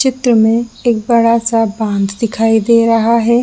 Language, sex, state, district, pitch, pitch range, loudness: Hindi, female, Jharkhand, Jamtara, 230 Hz, 225-235 Hz, -12 LUFS